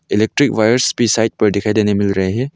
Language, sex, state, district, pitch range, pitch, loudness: Hindi, male, Arunachal Pradesh, Longding, 105-120 Hz, 110 Hz, -15 LUFS